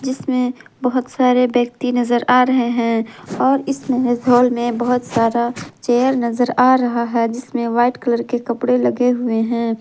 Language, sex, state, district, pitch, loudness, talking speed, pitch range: Hindi, female, Jharkhand, Ranchi, 245 Hz, -17 LUFS, 165 wpm, 235-250 Hz